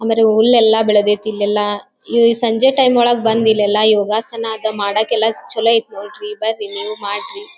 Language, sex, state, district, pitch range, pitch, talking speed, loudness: Kannada, female, Karnataka, Dharwad, 210-230 Hz, 220 Hz, 125 wpm, -15 LUFS